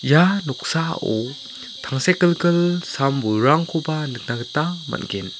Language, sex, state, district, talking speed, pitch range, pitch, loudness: Garo, male, Meghalaya, South Garo Hills, 80 wpm, 130-170 Hz, 150 Hz, -21 LUFS